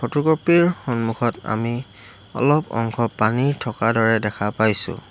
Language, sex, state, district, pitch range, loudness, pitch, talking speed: Assamese, male, Assam, Hailakandi, 110-130 Hz, -20 LUFS, 115 Hz, 130 wpm